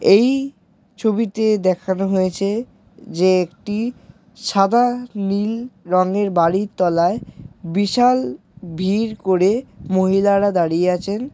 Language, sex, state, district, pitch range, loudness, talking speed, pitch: Bengali, male, West Bengal, Jalpaiguri, 185-220 Hz, -19 LUFS, 95 wpm, 200 Hz